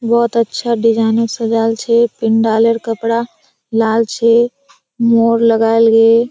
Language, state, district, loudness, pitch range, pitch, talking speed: Surjapuri, Bihar, Kishanganj, -13 LUFS, 225-235 Hz, 230 Hz, 125 wpm